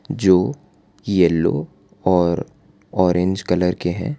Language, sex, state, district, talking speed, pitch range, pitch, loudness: Hindi, male, Gujarat, Valsad, 100 wpm, 90-100 Hz, 90 Hz, -19 LUFS